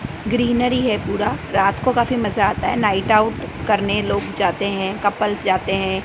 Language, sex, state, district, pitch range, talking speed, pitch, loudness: Hindi, female, Gujarat, Gandhinagar, 195-240 Hz, 180 wpm, 210 Hz, -19 LUFS